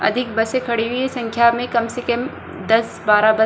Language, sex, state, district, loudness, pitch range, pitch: Hindi, female, Bihar, Supaul, -19 LUFS, 225-245 Hz, 235 Hz